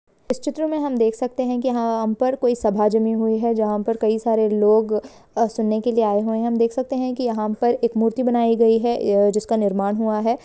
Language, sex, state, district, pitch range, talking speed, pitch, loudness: Hindi, female, Jharkhand, Jamtara, 215-240 Hz, 235 wpm, 230 Hz, -20 LUFS